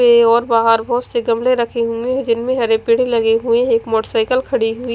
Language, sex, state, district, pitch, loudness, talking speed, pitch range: Hindi, female, Punjab, Fazilka, 235 Hz, -16 LUFS, 220 wpm, 230-245 Hz